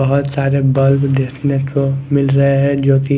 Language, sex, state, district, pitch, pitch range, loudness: Hindi, male, Chandigarh, Chandigarh, 140 Hz, 135-140 Hz, -14 LUFS